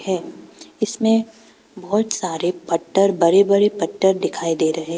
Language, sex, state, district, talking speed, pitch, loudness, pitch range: Hindi, female, Arunachal Pradesh, Papum Pare, 135 wpm, 190 Hz, -19 LUFS, 170-210 Hz